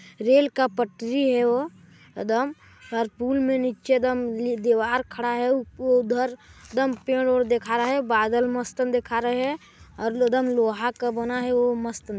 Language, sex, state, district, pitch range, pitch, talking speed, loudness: Hindi, male, Chhattisgarh, Balrampur, 235-255 Hz, 245 Hz, 165 wpm, -24 LUFS